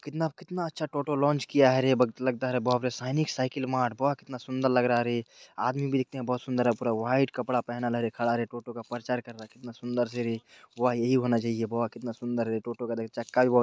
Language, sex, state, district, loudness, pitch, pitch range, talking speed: Maithili, male, Bihar, Purnia, -29 LUFS, 125 Hz, 120-130 Hz, 270 wpm